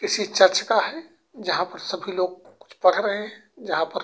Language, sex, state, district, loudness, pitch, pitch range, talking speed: Bhojpuri, male, Uttar Pradesh, Gorakhpur, -23 LUFS, 195 Hz, 185-220 Hz, 225 wpm